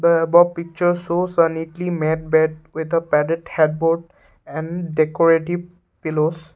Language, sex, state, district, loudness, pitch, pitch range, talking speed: English, male, Assam, Kamrup Metropolitan, -19 LUFS, 165 Hz, 160-170 Hz, 135 wpm